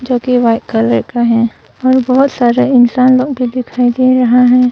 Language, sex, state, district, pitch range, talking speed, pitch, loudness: Hindi, female, Arunachal Pradesh, Longding, 240-255 Hz, 190 wpm, 250 Hz, -11 LUFS